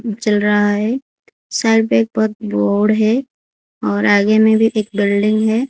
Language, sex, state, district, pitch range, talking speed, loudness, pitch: Hindi, female, Odisha, Khordha, 205-220 Hz, 170 wpm, -15 LUFS, 215 Hz